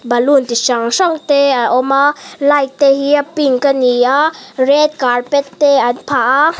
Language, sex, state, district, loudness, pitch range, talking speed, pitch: Mizo, female, Mizoram, Aizawl, -13 LUFS, 255-290 Hz, 200 wpm, 275 Hz